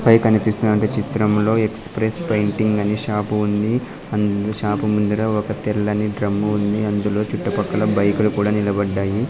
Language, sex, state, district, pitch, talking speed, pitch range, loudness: Telugu, male, Andhra Pradesh, Sri Satya Sai, 105 Hz, 135 wpm, 105-110 Hz, -19 LUFS